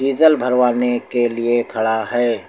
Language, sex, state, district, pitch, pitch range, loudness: Hindi, male, Uttar Pradesh, Lucknow, 120 Hz, 115-125 Hz, -17 LUFS